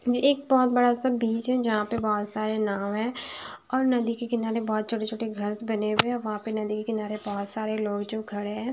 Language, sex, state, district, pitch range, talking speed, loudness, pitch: Hindi, female, Bihar, Patna, 215-240 Hz, 235 wpm, -26 LUFS, 220 Hz